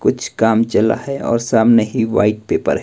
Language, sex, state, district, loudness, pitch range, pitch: Hindi, male, Himachal Pradesh, Shimla, -16 LUFS, 110-115 Hz, 115 Hz